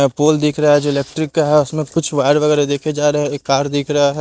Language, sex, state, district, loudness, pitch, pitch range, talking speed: Hindi, male, Haryana, Jhajjar, -16 LUFS, 150 Hz, 145-150 Hz, 315 wpm